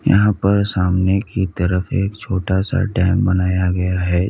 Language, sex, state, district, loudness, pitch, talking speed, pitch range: Hindi, male, Uttar Pradesh, Lalitpur, -18 LUFS, 95 Hz, 165 wpm, 90-100 Hz